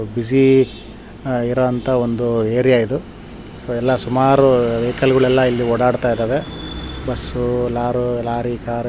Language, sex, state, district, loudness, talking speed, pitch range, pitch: Kannada, male, Karnataka, Shimoga, -17 LUFS, 130 wpm, 120-130 Hz, 120 Hz